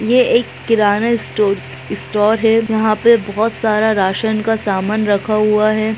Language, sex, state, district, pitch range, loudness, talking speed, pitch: Hindi, female, Bihar, Gaya, 210-225 Hz, -15 LUFS, 170 wpm, 215 Hz